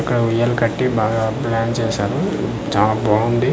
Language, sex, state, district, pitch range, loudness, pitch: Telugu, male, Andhra Pradesh, Manyam, 110-120 Hz, -18 LUFS, 115 Hz